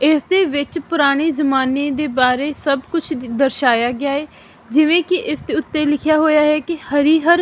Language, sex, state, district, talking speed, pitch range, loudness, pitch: Punjabi, female, Punjab, Fazilka, 185 wpm, 275-315 Hz, -17 LUFS, 295 Hz